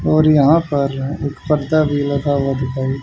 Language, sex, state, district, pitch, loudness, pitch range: Hindi, male, Haryana, Charkhi Dadri, 140 Hz, -17 LUFS, 135-155 Hz